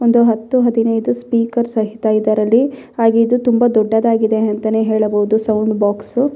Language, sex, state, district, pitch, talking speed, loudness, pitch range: Kannada, female, Karnataka, Bellary, 225 Hz, 140 wpm, -15 LUFS, 220-235 Hz